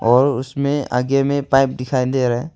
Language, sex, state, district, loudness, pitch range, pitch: Hindi, male, Arunachal Pradesh, Longding, -18 LUFS, 125-140 Hz, 135 Hz